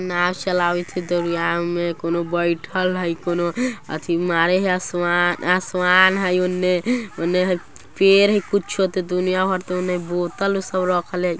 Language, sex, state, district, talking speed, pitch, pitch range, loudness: Bajjika, female, Bihar, Vaishali, 155 wpm, 180 Hz, 175-185 Hz, -20 LUFS